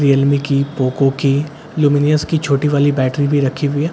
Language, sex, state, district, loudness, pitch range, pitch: Hindi, male, Bihar, Katihar, -16 LUFS, 140-150 Hz, 145 Hz